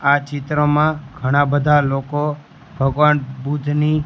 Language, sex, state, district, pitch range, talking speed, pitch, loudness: Gujarati, male, Gujarat, Gandhinagar, 140-150 Hz, 120 wpm, 145 Hz, -18 LUFS